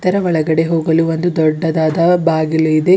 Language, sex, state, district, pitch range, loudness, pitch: Kannada, male, Karnataka, Bidar, 160-175 Hz, -14 LUFS, 160 Hz